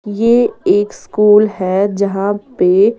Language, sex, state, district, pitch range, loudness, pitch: Hindi, female, Bihar, West Champaran, 200-235 Hz, -13 LUFS, 210 Hz